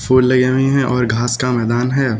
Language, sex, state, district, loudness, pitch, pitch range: Hindi, male, Uttar Pradesh, Lucknow, -15 LUFS, 125 Hz, 120-130 Hz